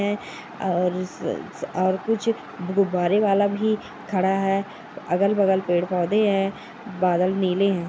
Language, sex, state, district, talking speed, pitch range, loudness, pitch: Hindi, female, West Bengal, Purulia, 135 wpm, 185-205 Hz, -23 LUFS, 195 Hz